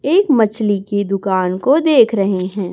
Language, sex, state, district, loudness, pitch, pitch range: Hindi, female, Chhattisgarh, Raipur, -15 LUFS, 205 Hz, 195-250 Hz